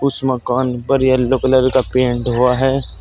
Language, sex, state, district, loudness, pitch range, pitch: Hindi, male, Uttar Pradesh, Saharanpur, -16 LUFS, 125-130 Hz, 130 Hz